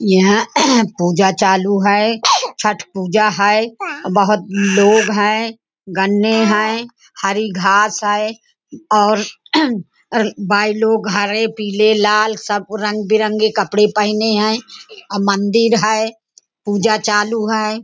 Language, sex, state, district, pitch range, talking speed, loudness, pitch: Hindi, female, Maharashtra, Nagpur, 205-220 Hz, 85 wpm, -15 LUFS, 215 Hz